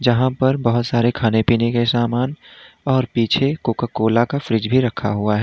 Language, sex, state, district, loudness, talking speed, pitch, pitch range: Hindi, male, Uttar Pradesh, Lalitpur, -18 LUFS, 200 wpm, 120 Hz, 115-130 Hz